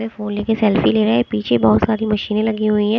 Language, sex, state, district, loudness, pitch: Hindi, female, Haryana, Charkhi Dadri, -17 LUFS, 210 Hz